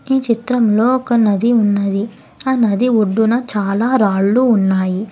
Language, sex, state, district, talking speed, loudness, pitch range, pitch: Telugu, female, Telangana, Hyderabad, 130 wpm, -15 LUFS, 200-245 Hz, 225 Hz